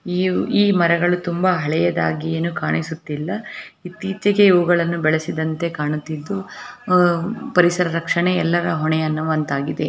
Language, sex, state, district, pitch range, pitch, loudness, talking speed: Kannada, female, Karnataka, Belgaum, 160-180 Hz, 170 Hz, -19 LUFS, 105 wpm